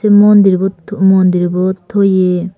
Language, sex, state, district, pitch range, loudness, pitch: Chakma, female, Tripura, Dhalai, 185-200 Hz, -11 LUFS, 190 Hz